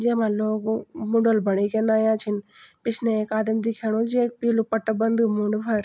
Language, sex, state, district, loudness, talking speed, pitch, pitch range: Garhwali, female, Uttarakhand, Tehri Garhwal, -23 LUFS, 175 wpm, 220 Hz, 215-230 Hz